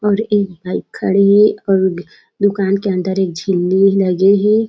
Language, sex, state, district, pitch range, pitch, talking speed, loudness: Chhattisgarhi, female, Chhattisgarh, Raigarh, 190-205 Hz, 195 Hz, 165 wpm, -15 LUFS